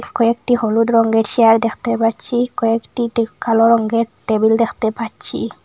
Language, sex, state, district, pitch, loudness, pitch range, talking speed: Bengali, female, Assam, Hailakandi, 230 Hz, -16 LUFS, 225-235 Hz, 130 wpm